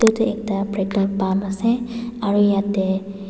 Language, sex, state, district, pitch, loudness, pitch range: Nagamese, female, Nagaland, Dimapur, 200 Hz, -21 LUFS, 195-225 Hz